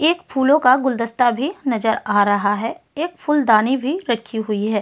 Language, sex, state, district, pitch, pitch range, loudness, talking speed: Hindi, female, Delhi, New Delhi, 245 Hz, 220-295 Hz, -18 LUFS, 185 wpm